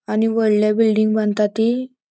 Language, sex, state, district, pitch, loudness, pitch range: Konkani, female, Goa, North and South Goa, 220 Hz, -18 LUFS, 215-225 Hz